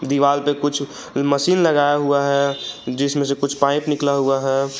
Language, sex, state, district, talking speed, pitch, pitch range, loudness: Hindi, male, Jharkhand, Garhwa, 175 wpm, 140 Hz, 140-145 Hz, -19 LUFS